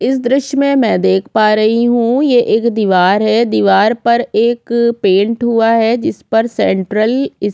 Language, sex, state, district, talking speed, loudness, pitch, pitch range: Hindi, female, Chhattisgarh, Korba, 185 wpm, -12 LUFS, 230 Hz, 215-240 Hz